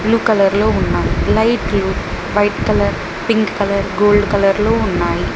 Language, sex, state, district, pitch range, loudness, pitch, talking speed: Telugu, female, Telangana, Mahabubabad, 195-215 Hz, -15 LUFS, 205 Hz, 145 wpm